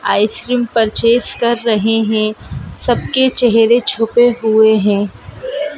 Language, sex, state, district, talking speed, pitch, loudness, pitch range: Hindi, male, Madhya Pradesh, Bhopal, 105 wpm, 230 Hz, -13 LUFS, 220-245 Hz